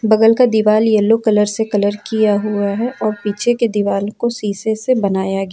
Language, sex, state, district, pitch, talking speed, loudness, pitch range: Hindi, female, Jharkhand, Ranchi, 215 Hz, 205 wpm, -16 LUFS, 205-225 Hz